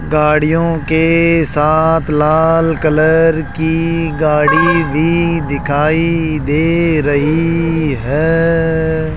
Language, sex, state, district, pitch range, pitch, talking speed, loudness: Hindi, male, Rajasthan, Jaipur, 155-165 Hz, 160 Hz, 80 wpm, -13 LUFS